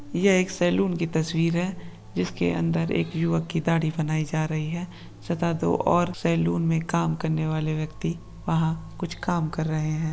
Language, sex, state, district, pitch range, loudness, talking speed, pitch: Hindi, male, Andhra Pradesh, Krishna, 155-170 Hz, -25 LUFS, 180 wpm, 160 Hz